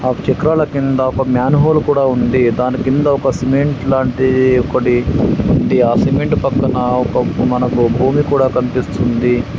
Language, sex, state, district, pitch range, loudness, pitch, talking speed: Telugu, male, Telangana, Adilabad, 125-135 Hz, -14 LUFS, 130 Hz, 140 wpm